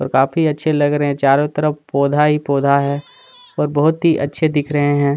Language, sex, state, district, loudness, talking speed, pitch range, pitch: Hindi, male, Chhattisgarh, Kabirdham, -16 LUFS, 220 wpm, 140-155 Hz, 145 Hz